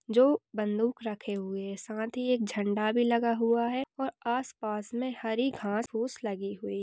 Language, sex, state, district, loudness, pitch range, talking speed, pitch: Hindi, female, Bihar, Kishanganj, -31 LUFS, 210-250 Hz, 200 wpm, 225 Hz